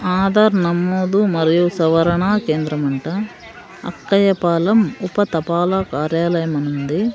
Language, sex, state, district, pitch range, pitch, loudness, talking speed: Telugu, female, Andhra Pradesh, Sri Satya Sai, 160-195 Hz, 175 Hz, -17 LUFS, 75 wpm